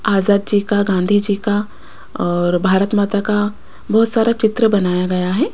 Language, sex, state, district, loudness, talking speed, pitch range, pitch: Hindi, female, Rajasthan, Jaipur, -16 LUFS, 175 wpm, 190-215 Hz, 205 Hz